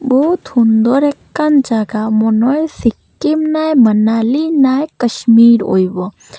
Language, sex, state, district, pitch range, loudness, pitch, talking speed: Bengali, female, Assam, Hailakandi, 225-295 Hz, -13 LUFS, 245 Hz, 110 wpm